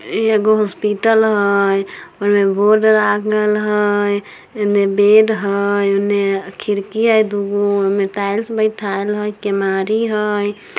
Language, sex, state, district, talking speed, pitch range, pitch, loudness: Maithili, female, Bihar, Samastipur, 140 wpm, 200-215 Hz, 205 Hz, -16 LUFS